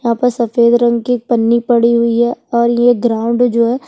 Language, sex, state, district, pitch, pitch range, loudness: Hindi, female, Chhattisgarh, Sukma, 235 Hz, 235-240 Hz, -13 LUFS